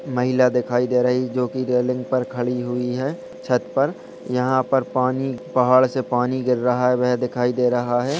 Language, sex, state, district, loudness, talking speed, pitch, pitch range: Hindi, male, Bihar, Purnia, -21 LUFS, 200 wpm, 125 Hz, 125-130 Hz